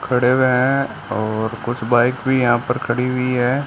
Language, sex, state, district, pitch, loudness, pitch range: Hindi, male, Rajasthan, Bikaner, 125 Hz, -18 LUFS, 120-130 Hz